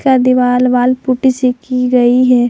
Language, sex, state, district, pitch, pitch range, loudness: Hindi, female, Jharkhand, Palamu, 250 Hz, 250-255 Hz, -12 LUFS